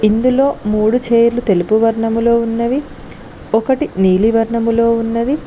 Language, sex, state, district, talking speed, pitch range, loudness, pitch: Telugu, female, Telangana, Mahabubabad, 100 wpm, 220-235 Hz, -14 LUFS, 230 Hz